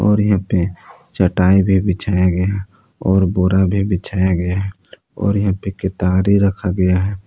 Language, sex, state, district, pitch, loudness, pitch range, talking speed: Hindi, male, Jharkhand, Palamu, 95 Hz, -17 LUFS, 90-100 Hz, 175 wpm